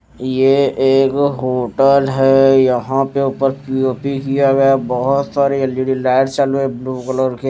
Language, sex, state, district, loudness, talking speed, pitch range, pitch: Hindi, male, Odisha, Malkangiri, -15 LUFS, 150 wpm, 130-135 Hz, 135 Hz